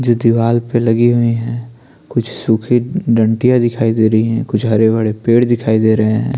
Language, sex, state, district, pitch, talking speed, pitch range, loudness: Hindi, male, Maharashtra, Chandrapur, 115 Hz, 190 wpm, 110-120 Hz, -14 LUFS